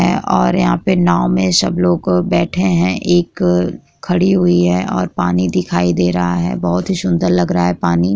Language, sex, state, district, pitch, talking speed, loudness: Hindi, female, Chhattisgarh, Korba, 90 Hz, 200 wpm, -15 LUFS